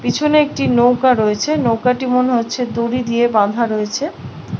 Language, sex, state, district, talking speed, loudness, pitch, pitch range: Bengali, female, West Bengal, Paschim Medinipur, 145 wpm, -16 LUFS, 245 Hz, 230-255 Hz